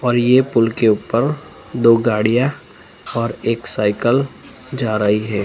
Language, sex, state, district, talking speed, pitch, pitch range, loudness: Hindi, male, Bihar, Darbhanga, 145 wpm, 115 Hz, 110-125 Hz, -17 LUFS